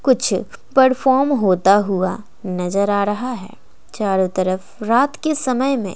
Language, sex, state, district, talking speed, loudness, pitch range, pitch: Hindi, female, Bihar, West Champaran, 140 wpm, -18 LUFS, 190-260 Hz, 210 Hz